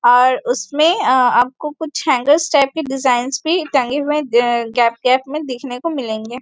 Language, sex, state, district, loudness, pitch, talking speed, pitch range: Hindi, female, Chhattisgarh, Bastar, -16 LUFS, 260 Hz, 180 wpm, 245-300 Hz